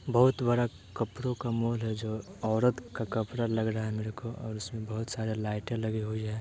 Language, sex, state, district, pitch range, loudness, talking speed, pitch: Hindi, male, Bihar, Sitamarhi, 110-120 Hz, -32 LUFS, 205 wpm, 110 Hz